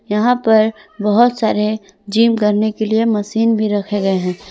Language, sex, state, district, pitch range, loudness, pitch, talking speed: Hindi, female, Jharkhand, Palamu, 205-225 Hz, -16 LUFS, 215 Hz, 175 wpm